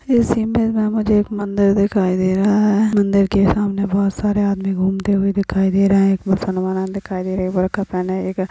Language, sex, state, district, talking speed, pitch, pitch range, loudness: Hindi, female, Chhattisgarh, Bastar, 220 wpm, 195 Hz, 190-205 Hz, -17 LUFS